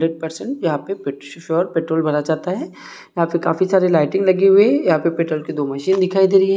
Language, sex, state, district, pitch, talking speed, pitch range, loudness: Hindi, male, Chhattisgarh, Bilaspur, 170 Hz, 265 wpm, 160-190 Hz, -18 LUFS